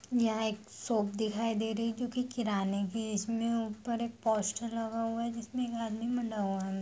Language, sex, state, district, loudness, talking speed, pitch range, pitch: Hindi, female, Jharkhand, Sahebganj, -34 LUFS, 220 wpm, 215-230 Hz, 225 Hz